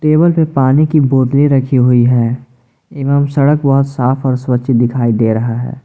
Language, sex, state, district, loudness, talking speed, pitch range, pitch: Hindi, male, Jharkhand, Ranchi, -12 LUFS, 185 wpm, 125-140 Hz, 130 Hz